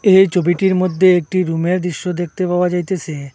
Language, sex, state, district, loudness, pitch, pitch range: Bengali, male, Assam, Hailakandi, -16 LUFS, 180 Hz, 175-185 Hz